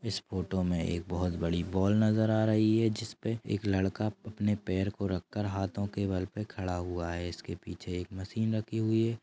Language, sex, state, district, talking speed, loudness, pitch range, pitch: Hindi, male, Chhattisgarh, Raigarh, 210 wpm, -32 LUFS, 90-110 Hz, 100 Hz